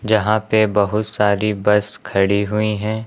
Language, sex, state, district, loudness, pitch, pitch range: Hindi, male, Uttar Pradesh, Lucknow, -18 LUFS, 105 Hz, 105-110 Hz